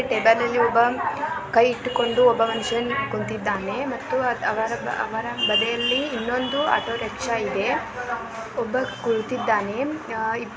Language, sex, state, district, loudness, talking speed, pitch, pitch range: Kannada, female, Karnataka, Belgaum, -23 LUFS, 100 wpm, 235 Hz, 225-250 Hz